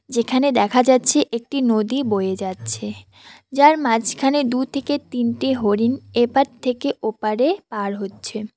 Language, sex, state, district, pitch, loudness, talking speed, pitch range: Bengali, female, West Bengal, Cooch Behar, 240 Hz, -20 LUFS, 125 wpm, 215-270 Hz